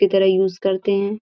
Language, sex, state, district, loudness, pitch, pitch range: Hindi, female, Uttar Pradesh, Gorakhpur, -19 LUFS, 195 Hz, 190-200 Hz